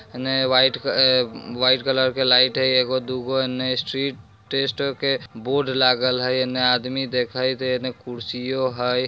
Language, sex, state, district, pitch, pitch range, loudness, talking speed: Bajjika, male, Bihar, Vaishali, 130 Hz, 125-130 Hz, -21 LUFS, 150 wpm